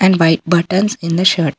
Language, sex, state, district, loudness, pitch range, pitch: Kannada, female, Karnataka, Bangalore, -14 LUFS, 165-190 Hz, 175 Hz